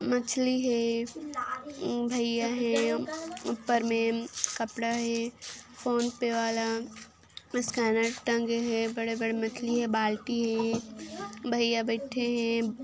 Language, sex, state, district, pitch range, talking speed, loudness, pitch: Hindi, female, Chhattisgarh, Kabirdham, 230-245 Hz, 105 wpm, -30 LUFS, 235 Hz